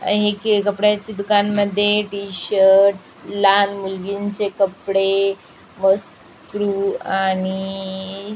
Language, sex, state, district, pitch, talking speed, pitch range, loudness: Marathi, female, Maharashtra, Aurangabad, 200 Hz, 80 wpm, 195-205 Hz, -18 LUFS